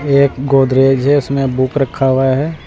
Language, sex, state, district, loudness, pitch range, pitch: Hindi, male, Uttar Pradesh, Saharanpur, -13 LUFS, 130-140 Hz, 135 Hz